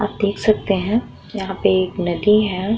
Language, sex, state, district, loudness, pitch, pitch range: Hindi, female, Uttar Pradesh, Muzaffarnagar, -19 LUFS, 200 Hz, 185-215 Hz